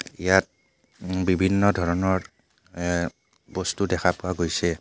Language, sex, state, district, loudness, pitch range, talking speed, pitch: Assamese, male, Assam, Kamrup Metropolitan, -24 LUFS, 85-95 Hz, 110 wpm, 90 Hz